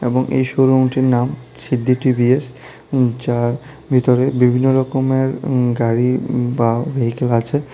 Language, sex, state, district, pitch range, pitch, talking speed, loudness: Bengali, male, Tripura, South Tripura, 120-130 Hz, 125 Hz, 125 wpm, -17 LUFS